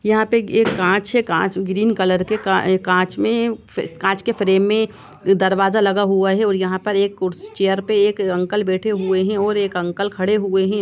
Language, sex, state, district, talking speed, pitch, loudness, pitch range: Hindi, female, Chhattisgarh, Sukma, 205 wpm, 195 Hz, -18 LUFS, 190-210 Hz